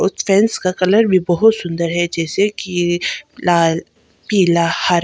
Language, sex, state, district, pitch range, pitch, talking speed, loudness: Hindi, female, Arunachal Pradesh, Papum Pare, 170-195 Hz, 175 Hz, 155 wpm, -16 LUFS